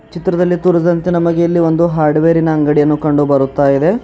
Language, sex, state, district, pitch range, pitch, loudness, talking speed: Kannada, male, Karnataka, Bidar, 150-175 Hz, 165 Hz, -13 LUFS, 165 wpm